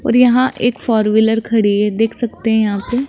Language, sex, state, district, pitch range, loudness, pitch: Hindi, female, Rajasthan, Jaipur, 220-245 Hz, -15 LUFS, 225 Hz